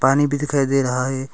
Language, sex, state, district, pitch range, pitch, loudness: Hindi, male, Arunachal Pradesh, Longding, 130-140 Hz, 135 Hz, -19 LUFS